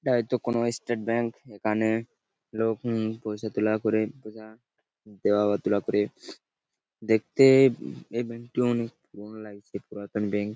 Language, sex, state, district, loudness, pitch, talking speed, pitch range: Bengali, male, West Bengal, Purulia, -26 LUFS, 110 Hz, 140 wpm, 105-120 Hz